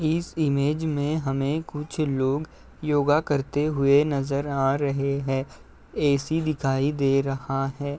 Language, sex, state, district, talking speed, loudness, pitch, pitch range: Hindi, male, Uttar Pradesh, Deoria, 135 wpm, -25 LUFS, 140 Hz, 135-150 Hz